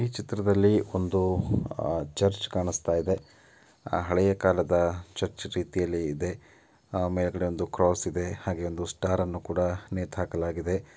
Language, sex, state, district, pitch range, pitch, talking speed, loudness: Kannada, male, Karnataka, Dakshina Kannada, 85-95 Hz, 90 Hz, 120 wpm, -28 LUFS